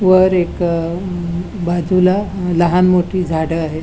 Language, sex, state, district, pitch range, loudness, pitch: Marathi, female, Goa, North and South Goa, 170-185 Hz, -16 LUFS, 175 Hz